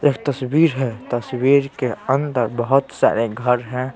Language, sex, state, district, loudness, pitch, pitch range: Hindi, male, Bihar, Patna, -19 LUFS, 130 Hz, 125-135 Hz